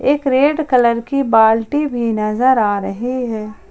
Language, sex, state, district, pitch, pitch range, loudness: Hindi, female, Jharkhand, Ranchi, 240 Hz, 220-270 Hz, -16 LUFS